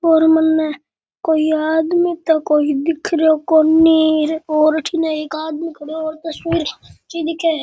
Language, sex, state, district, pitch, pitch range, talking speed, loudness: Rajasthani, male, Rajasthan, Nagaur, 320 Hz, 310-325 Hz, 150 wpm, -16 LUFS